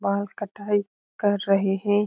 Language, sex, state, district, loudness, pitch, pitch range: Hindi, female, Bihar, Lakhisarai, -25 LUFS, 205 Hz, 195-205 Hz